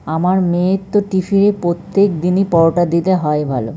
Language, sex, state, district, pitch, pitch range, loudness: Bengali, male, West Bengal, North 24 Parganas, 180 Hz, 165-195 Hz, -15 LUFS